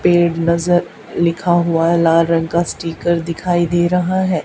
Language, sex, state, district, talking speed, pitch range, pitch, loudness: Hindi, female, Haryana, Charkhi Dadri, 160 wpm, 165-175 Hz, 170 Hz, -16 LUFS